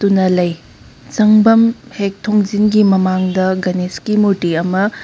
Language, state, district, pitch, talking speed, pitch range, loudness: Manipuri, Manipur, Imphal West, 190 Hz, 105 wpm, 180-210 Hz, -14 LUFS